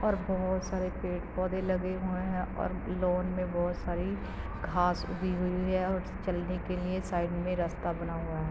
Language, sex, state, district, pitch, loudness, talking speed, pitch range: Hindi, female, Uttar Pradesh, Varanasi, 180 Hz, -33 LUFS, 185 wpm, 175-185 Hz